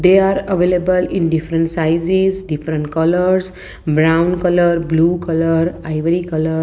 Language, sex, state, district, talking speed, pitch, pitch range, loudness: English, female, Gujarat, Valsad, 125 wpm, 170 Hz, 160-180 Hz, -16 LUFS